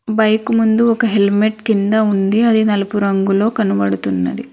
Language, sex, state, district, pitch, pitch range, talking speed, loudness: Telugu, female, Telangana, Hyderabad, 215 Hz, 200-220 Hz, 130 wpm, -15 LUFS